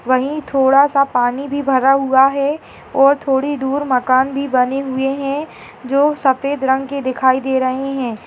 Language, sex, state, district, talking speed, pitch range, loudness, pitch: Hindi, female, Bihar, Saharsa, 175 wpm, 260-280 Hz, -16 LUFS, 270 Hz